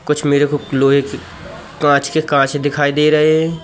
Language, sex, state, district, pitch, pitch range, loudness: Hindi, male, Madhya Pradesh, Katni, 145 Hz, 140-150 Hz, -14 LUFS